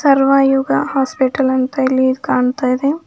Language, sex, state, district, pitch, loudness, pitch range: Kannada, female, Karnataka, Bidar, 265 Hz, -15 LUFS, 260-275 Hz